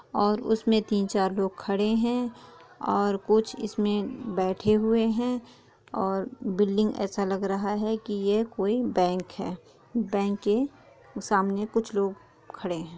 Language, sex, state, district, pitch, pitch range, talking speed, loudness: Hindi, female, Bihar, East Champaran, 205 Hz, 195-225 Hz, 145 wpm, -27 LUFS